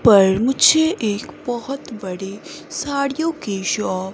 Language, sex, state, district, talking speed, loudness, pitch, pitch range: Hindi, female, Himachal Pradesh, Shimla, 130 wpm, -19 LUFS, 230 Hz, 195-285 Hz